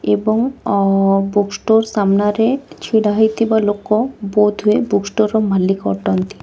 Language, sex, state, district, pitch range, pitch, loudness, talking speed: Odia, female, Odisha, Khordha, 200-220 Hz, 210 Hz, -16 LUFS, 140 wpm